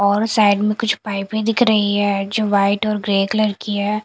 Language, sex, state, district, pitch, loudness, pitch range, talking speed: Hindi, female, Punjab, Kapurthala, 210 Hz, -18 LUFS, 200-215 Hz, 235 wpm